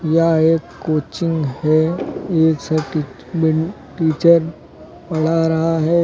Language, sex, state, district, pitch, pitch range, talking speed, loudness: Hindi, male, Uttar Pradesh, Lucknow, 160 Hz, 155-165 Hz, 90 wpm, -18 LUFS